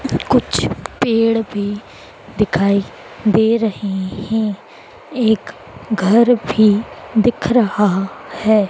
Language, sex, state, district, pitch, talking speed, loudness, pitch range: Hindi, female, Madhya Pradesh, Dhar, 215 Hz, 90 wpm, -17 LUFS, 200-225 Hz